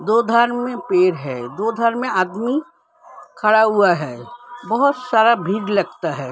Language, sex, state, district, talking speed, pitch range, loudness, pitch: Hindi, female, Uttar Pradesh, Hamirpur, 170 wpm, 185-240 Hz, -18 LUFS, 220 Hz